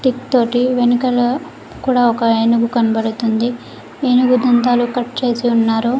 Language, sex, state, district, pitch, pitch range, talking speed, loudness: Telugu, female, Andhra Pradesh, Guntur, 245 Hz, 235-250 Hz, 120 wpm, -15 LUFS